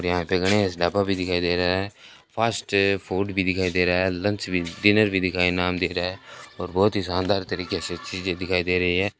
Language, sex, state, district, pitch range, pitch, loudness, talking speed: Hindi, male, Rajasthan, Bikaner, 90-100 Hz, 95 Hz, -23 LUFS, 250 wpm